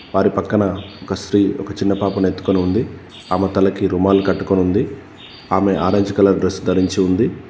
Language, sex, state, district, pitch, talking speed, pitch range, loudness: Telugu, male, Telangana, Komaram Bheem, 95 Hz, 160 wpm, 95-100 Hz, -17 LUFS